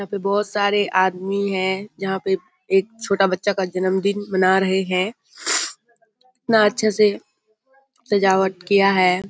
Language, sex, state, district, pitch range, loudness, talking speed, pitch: Hindi, female, Bihar, Kishanganj, 190-210 Hz, -20 LUFS, 155 wpm, 200 Hz